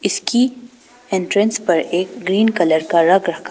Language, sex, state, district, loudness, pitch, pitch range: Hindi, female, Arunachal Pradesh, Papum Pare, -17 LUFS, 190 Hz, 170-230 Hz